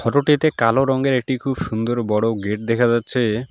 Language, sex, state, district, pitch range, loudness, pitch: Bengali, male, West Bengal, Alipurduar, 115-135 Hz, -19 LUFS, 120 Hz